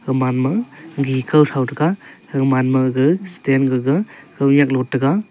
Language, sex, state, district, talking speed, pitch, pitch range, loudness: Wancho, male, Arunachal Pradesh, Longding, 115 wpm, 135 Hz, 130-150 Hz, -17 LUFS